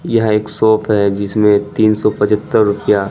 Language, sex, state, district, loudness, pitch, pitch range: Hindi, male, Bihar, Katihar, -14 LUFS, 105 Hz, 105-110 Hz